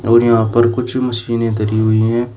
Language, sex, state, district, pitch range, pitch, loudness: Hindi, male, Uttar Pradesh, Shamli, 110-120 Hz, 115 Hz, -15 LUFS